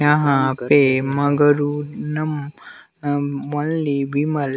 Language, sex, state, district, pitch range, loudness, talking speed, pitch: Hindi, male, Bihar, West Champaran, 140-150 Hz, -19 LUFS, 80 wpm, 145 Hz